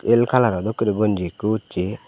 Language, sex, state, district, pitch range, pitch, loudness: Chakma, male, Tripura, Dhalai, 100-115 Hz, 110 Hz, -21 LUFS